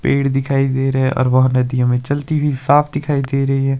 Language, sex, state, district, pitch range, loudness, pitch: Hindi, male, Himachal Pradesh, Shimla, 130-145 Hz, -16 LUFS, 135 Hz